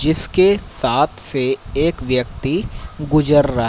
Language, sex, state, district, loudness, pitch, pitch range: Hindi, male, Haryana, Rohtak, -16 LUFS, 140 Hz, 125-155 Hz